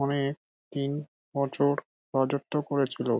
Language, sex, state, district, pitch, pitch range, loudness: Bengali, male, West Bengal, Dakshin Dinajpur, 140 Hz, 140-145 Hz, -30 LUFS